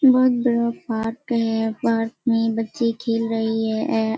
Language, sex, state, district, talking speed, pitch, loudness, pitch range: Hindi, female, Bihar, Kishanganj, 145 wpm, 230 Hz, -22 LUFS, 225-235 Hz